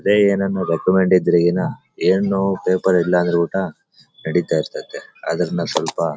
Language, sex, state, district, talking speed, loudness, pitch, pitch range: Kannada, male, Karnataka, Bellary, 135 wpm, -18 LUFS, 95 Hz, 85-95 Hz